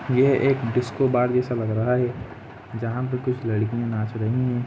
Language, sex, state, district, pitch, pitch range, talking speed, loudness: Hindi, male, Jharkhand, Jamtara, 125 Hz, 115-125 Hz, 190 wpm, -23 LUFS